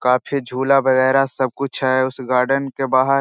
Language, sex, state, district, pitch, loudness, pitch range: Hindi, male, Bihar, Jahanabad, 130 Hz, -18 LUFS, 130-135 Hz